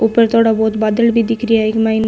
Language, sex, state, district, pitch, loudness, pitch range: Marwari, female, Rajasthan, Nagaur, 225 Hz, -14 LUFS, 220-230 Hz